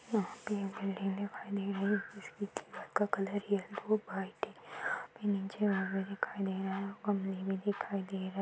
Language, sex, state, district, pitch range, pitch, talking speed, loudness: Hindi, female, Uttar Pradesh, Muzaffarnagar, 195-205 Hz, 200 Hz, 215 wpm, -37 LUFS